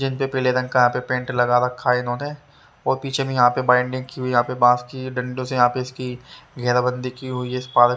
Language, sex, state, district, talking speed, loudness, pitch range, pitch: Hindi, male, Haryana, Rohtak, 265 wpm, -21 LUFS, 125-130 Hz, 125 Hz